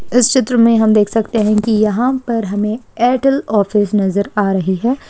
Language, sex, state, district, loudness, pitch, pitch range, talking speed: Hindi, female, Rajasthan, Churu, -14 LUFS, 220 Hz, 210-245 Hz, 190 wpm